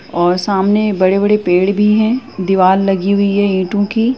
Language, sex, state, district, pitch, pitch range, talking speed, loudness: Hindi, female, Uttar Pradesh, Etah, 200 Hz, 190-210 Hz, 170 wpm, -13 LUFS